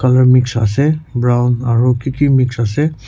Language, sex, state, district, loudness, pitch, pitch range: Nagamese, male, Nagaland, Kohima, -14 LUFS, 125 Hz, 120-135 Hz